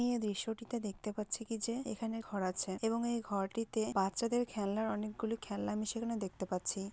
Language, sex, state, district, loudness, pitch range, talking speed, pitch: Bengali, female, West Bengal, Malda, -37 LUFS, 200-230 Hz, 180 wpm, 220 Hz